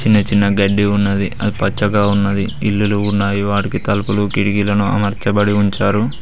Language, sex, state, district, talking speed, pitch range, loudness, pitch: Telugu, male, Telangana, Mahabubabad, 135 wpm, 100-105 Hz, -16 LUFS, 100 Hz